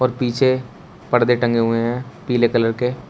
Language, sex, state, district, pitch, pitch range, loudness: Hindi, male, Uttar Pradesh, Shamli, 120 Hz, 120-125 Hz, -19 LUFS